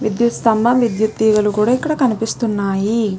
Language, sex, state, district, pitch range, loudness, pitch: Telugu, female, Telangana, Nalgonda, 210-235 Hz, -16 LUFS, 220 Hz